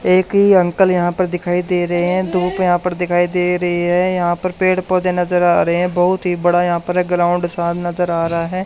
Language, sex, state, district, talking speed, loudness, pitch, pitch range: Hindi, male, Haryana, Charkhi Dadri, 250 wpm, -16 LUFS, 180 Hz, 175-180 Hz